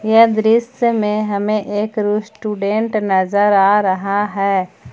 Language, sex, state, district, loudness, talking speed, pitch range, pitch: Hindi, female, Jharkhand, Palamu, -16 LUFS, 120 wpm, 200-220 Hz, 210 Hz